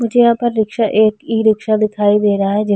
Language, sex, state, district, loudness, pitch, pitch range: Hindi, female, Chhattisgarh, Bilaspur, -14 LUFS, 215 Hz, 210-225 Hz